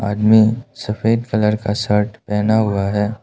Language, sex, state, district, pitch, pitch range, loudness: Hindi, male, Arunachal Pradesh, Lower Dibang Valley, 110 Hz, 105-110 Hz, -17 LUFS